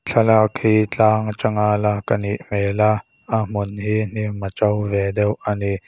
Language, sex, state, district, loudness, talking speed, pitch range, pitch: Mizo, male, Mizoram, Aizawl, -20 LUFS, 175 wpm, 100-110 Hz, 105 Hz